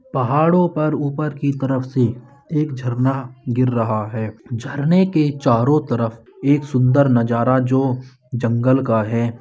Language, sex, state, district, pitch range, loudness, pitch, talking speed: Hindi, male, Bihar, Bhagalpur, 120-145 Hz, -19 LUFS, 130 Hz, 140 wpm